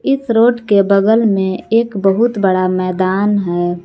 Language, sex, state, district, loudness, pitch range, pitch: Hindi, female, Jharkhand, Palamu, -14 LUFS, 185-225 Hz, 200 Hz